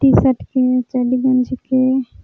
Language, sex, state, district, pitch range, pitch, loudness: Magahi, female, Jharkhand, Palamu, 255-260 Hz, 255 Hz, -16 LUFS